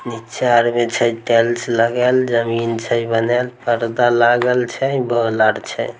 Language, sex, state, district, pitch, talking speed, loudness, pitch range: Maithili, male, Bihar, Samastipur, 120 Hz, 150 wpm, -17 LUFS, 115-120 Hz